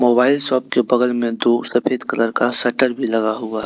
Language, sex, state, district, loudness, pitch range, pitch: Hindi, male, Jharkhand, Deoghar, -17 LUFS, 115-125 Hz, 120 Hz